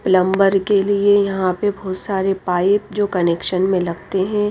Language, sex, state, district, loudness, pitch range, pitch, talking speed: Hindi, female, Odisha, Nuapada, -18 LUFS, 185-200 Hz, 195 Hz, 175 wpm